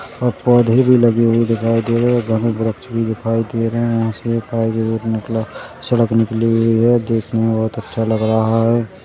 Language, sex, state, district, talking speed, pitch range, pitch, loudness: Hindi, male, Chhattisgarh, Rajnandgaon, 185 wpm, 110-115 Hz, 115 Hz, -16 LUFS